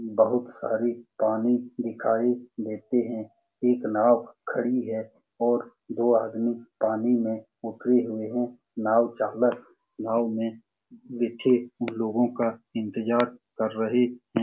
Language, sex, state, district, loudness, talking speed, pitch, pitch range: Hindi, male, Bihar, Saran, -26 LUFS, 130 wpm, 115 Hz, 110-120 Hz